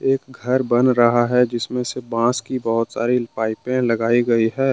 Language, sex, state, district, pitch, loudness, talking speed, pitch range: Hindi, male, Jharkhand, Deoghar, 120 Hz, -19 LUFS, 175 wpm, 115-125 Hz